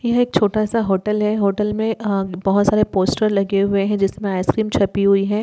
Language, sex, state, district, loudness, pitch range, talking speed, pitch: Hindi, female, Uttar Pradesh, Ghazipur, -18 LUFS, 195-215 Hz, 220 wpm, 205 Hz